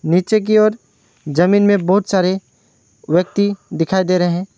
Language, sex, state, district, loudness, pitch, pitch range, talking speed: Hindi, male, West Bengal, Alipurduar, -16 LUFS, 185 Hz, 175-200 Hz, 155 wpm